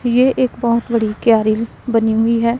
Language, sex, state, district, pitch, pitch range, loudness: Hindi, male, Punjab, Pathankot, 230 Hz, 225-240 Hz, -16 LUFS